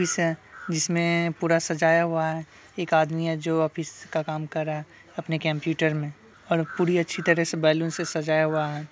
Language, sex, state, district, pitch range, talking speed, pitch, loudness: Hindi, male, Bihar, Sitamarhi, 155-170 Hz, 200 wpm, 160 Hz, -25 LUFS